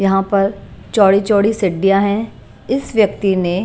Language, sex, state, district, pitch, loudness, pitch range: Hindi, female, Punjab, Pathankot, 200 Hz, -15 LUFS, 195-215 Hz